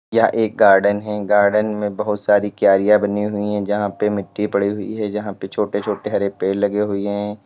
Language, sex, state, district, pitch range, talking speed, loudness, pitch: Hindi, male, Uttar Pradesh, Lalitpur, 100-105 Hz, 215 wpm, -18 LUFS, 105 Hz